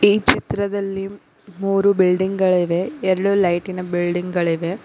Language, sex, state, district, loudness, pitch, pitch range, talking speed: Kannada, female, Karnataka, Koppal, -19 LUFS, 185 Hz, 175-195 Hz, 125 wpm